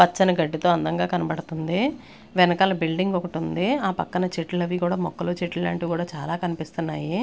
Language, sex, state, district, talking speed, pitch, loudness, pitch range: Telugu, female, Andhra Pradesh, Sri Satya Sai, 155 wpm, 175 Hz, -24 LUFS, 165-180 Hz